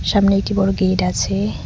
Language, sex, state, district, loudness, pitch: Bengali, female, West Bengal, Cooch Behar, -17 LUFS, 185 Hz